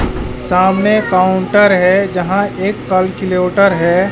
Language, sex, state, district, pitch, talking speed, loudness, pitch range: Hindi, male, Bihar, West Champaran, 185 Hz, 100 wpm, -13 LUFS, 180-200 Hz